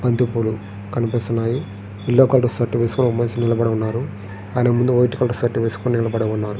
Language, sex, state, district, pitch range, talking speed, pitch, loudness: Telugu, male, Andhra Pradesh, Srikakulam, 110-120 Hz, 175 wpm, 115 Hz, -19 LUFS